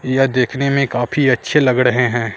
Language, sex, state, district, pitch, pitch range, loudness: Hindi, male, Bihar, Katihar, 130 Hz, 125-140 Hz, -15 LUFS